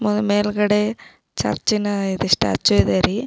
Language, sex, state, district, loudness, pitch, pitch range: Kannada, female, Karnataka, Belgaum, -19 LUFS, 210 Hz, 205-210 Hz